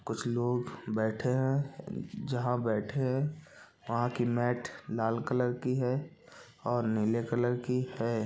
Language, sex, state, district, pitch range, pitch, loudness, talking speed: Hindi, male, Chhattisgarh, Rajnandgaon, 115-130 Hz, 120 Hz, -32 LUFS, 140 wpm